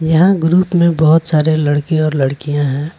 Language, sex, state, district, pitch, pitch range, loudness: Hindi, male, Bihar, West Champaran, 155 Hz, 145-165 Hz, -13 LUFS